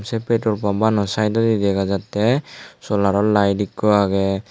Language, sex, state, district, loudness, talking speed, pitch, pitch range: Chakma, male, Tripura, Unakoti, -19 LUFS, 145 wpm, 105 Hz, 100-110 Hz